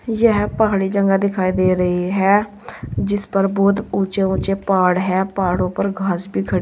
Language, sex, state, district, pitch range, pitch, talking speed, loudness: Hindi, female, Uttar Pradesh, Saharanpur, 185-200 Hz, 195 Hz, 165 wpm, -18 LUFS